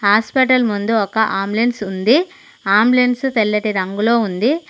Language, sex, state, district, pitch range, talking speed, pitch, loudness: Telugu, female, Telangana, Mahabubabad, 205-250 Hz, 115 wpm, 220 Hz, -16 LUFS